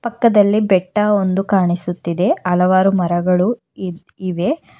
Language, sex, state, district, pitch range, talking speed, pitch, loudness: Kannada, female, Karnataka, Bangalore, 180-210 Hz, 100 wpm, 185 Hz, -16 LUFS